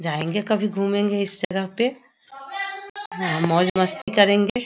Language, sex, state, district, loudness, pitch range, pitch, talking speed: Hindi, female, Bihar, Muzaffarpur, -22 LUFS, 185-245 Hz, 205 Hz, 115 wpm